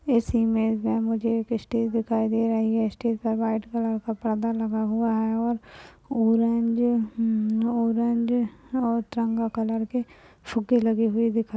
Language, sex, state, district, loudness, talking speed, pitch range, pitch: Hindi, female, Bihar, Madhepura, -25 LUFS, 170 wpm, 225-230 Hz, 230 Hz